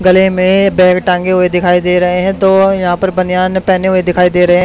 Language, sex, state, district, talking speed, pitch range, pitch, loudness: Hindi, male, Haryana, Charkhi Dadri, 230 wpm, 180-190 Hz, 185 Hz, -10 LUFS